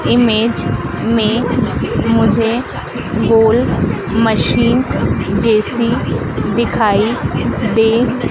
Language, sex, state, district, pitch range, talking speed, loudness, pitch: Hindi, female, Madhya Pradesh, Dhar, 220-235 Hz, 60 wpm, -14 LUFS, 225 Hz